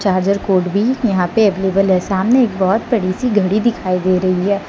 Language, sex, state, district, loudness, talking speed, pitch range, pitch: Hindi, female, Jharkhand, Deoghar, -15 LUFS, 215 wpm, 185-220 Hz, 195 Hz